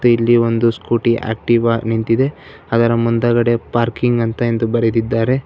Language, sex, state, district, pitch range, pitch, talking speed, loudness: Kannada, male, Karnataka, Bangalore, 115-120 Hz, 115 Hz, 120 wpm, -16 LUFS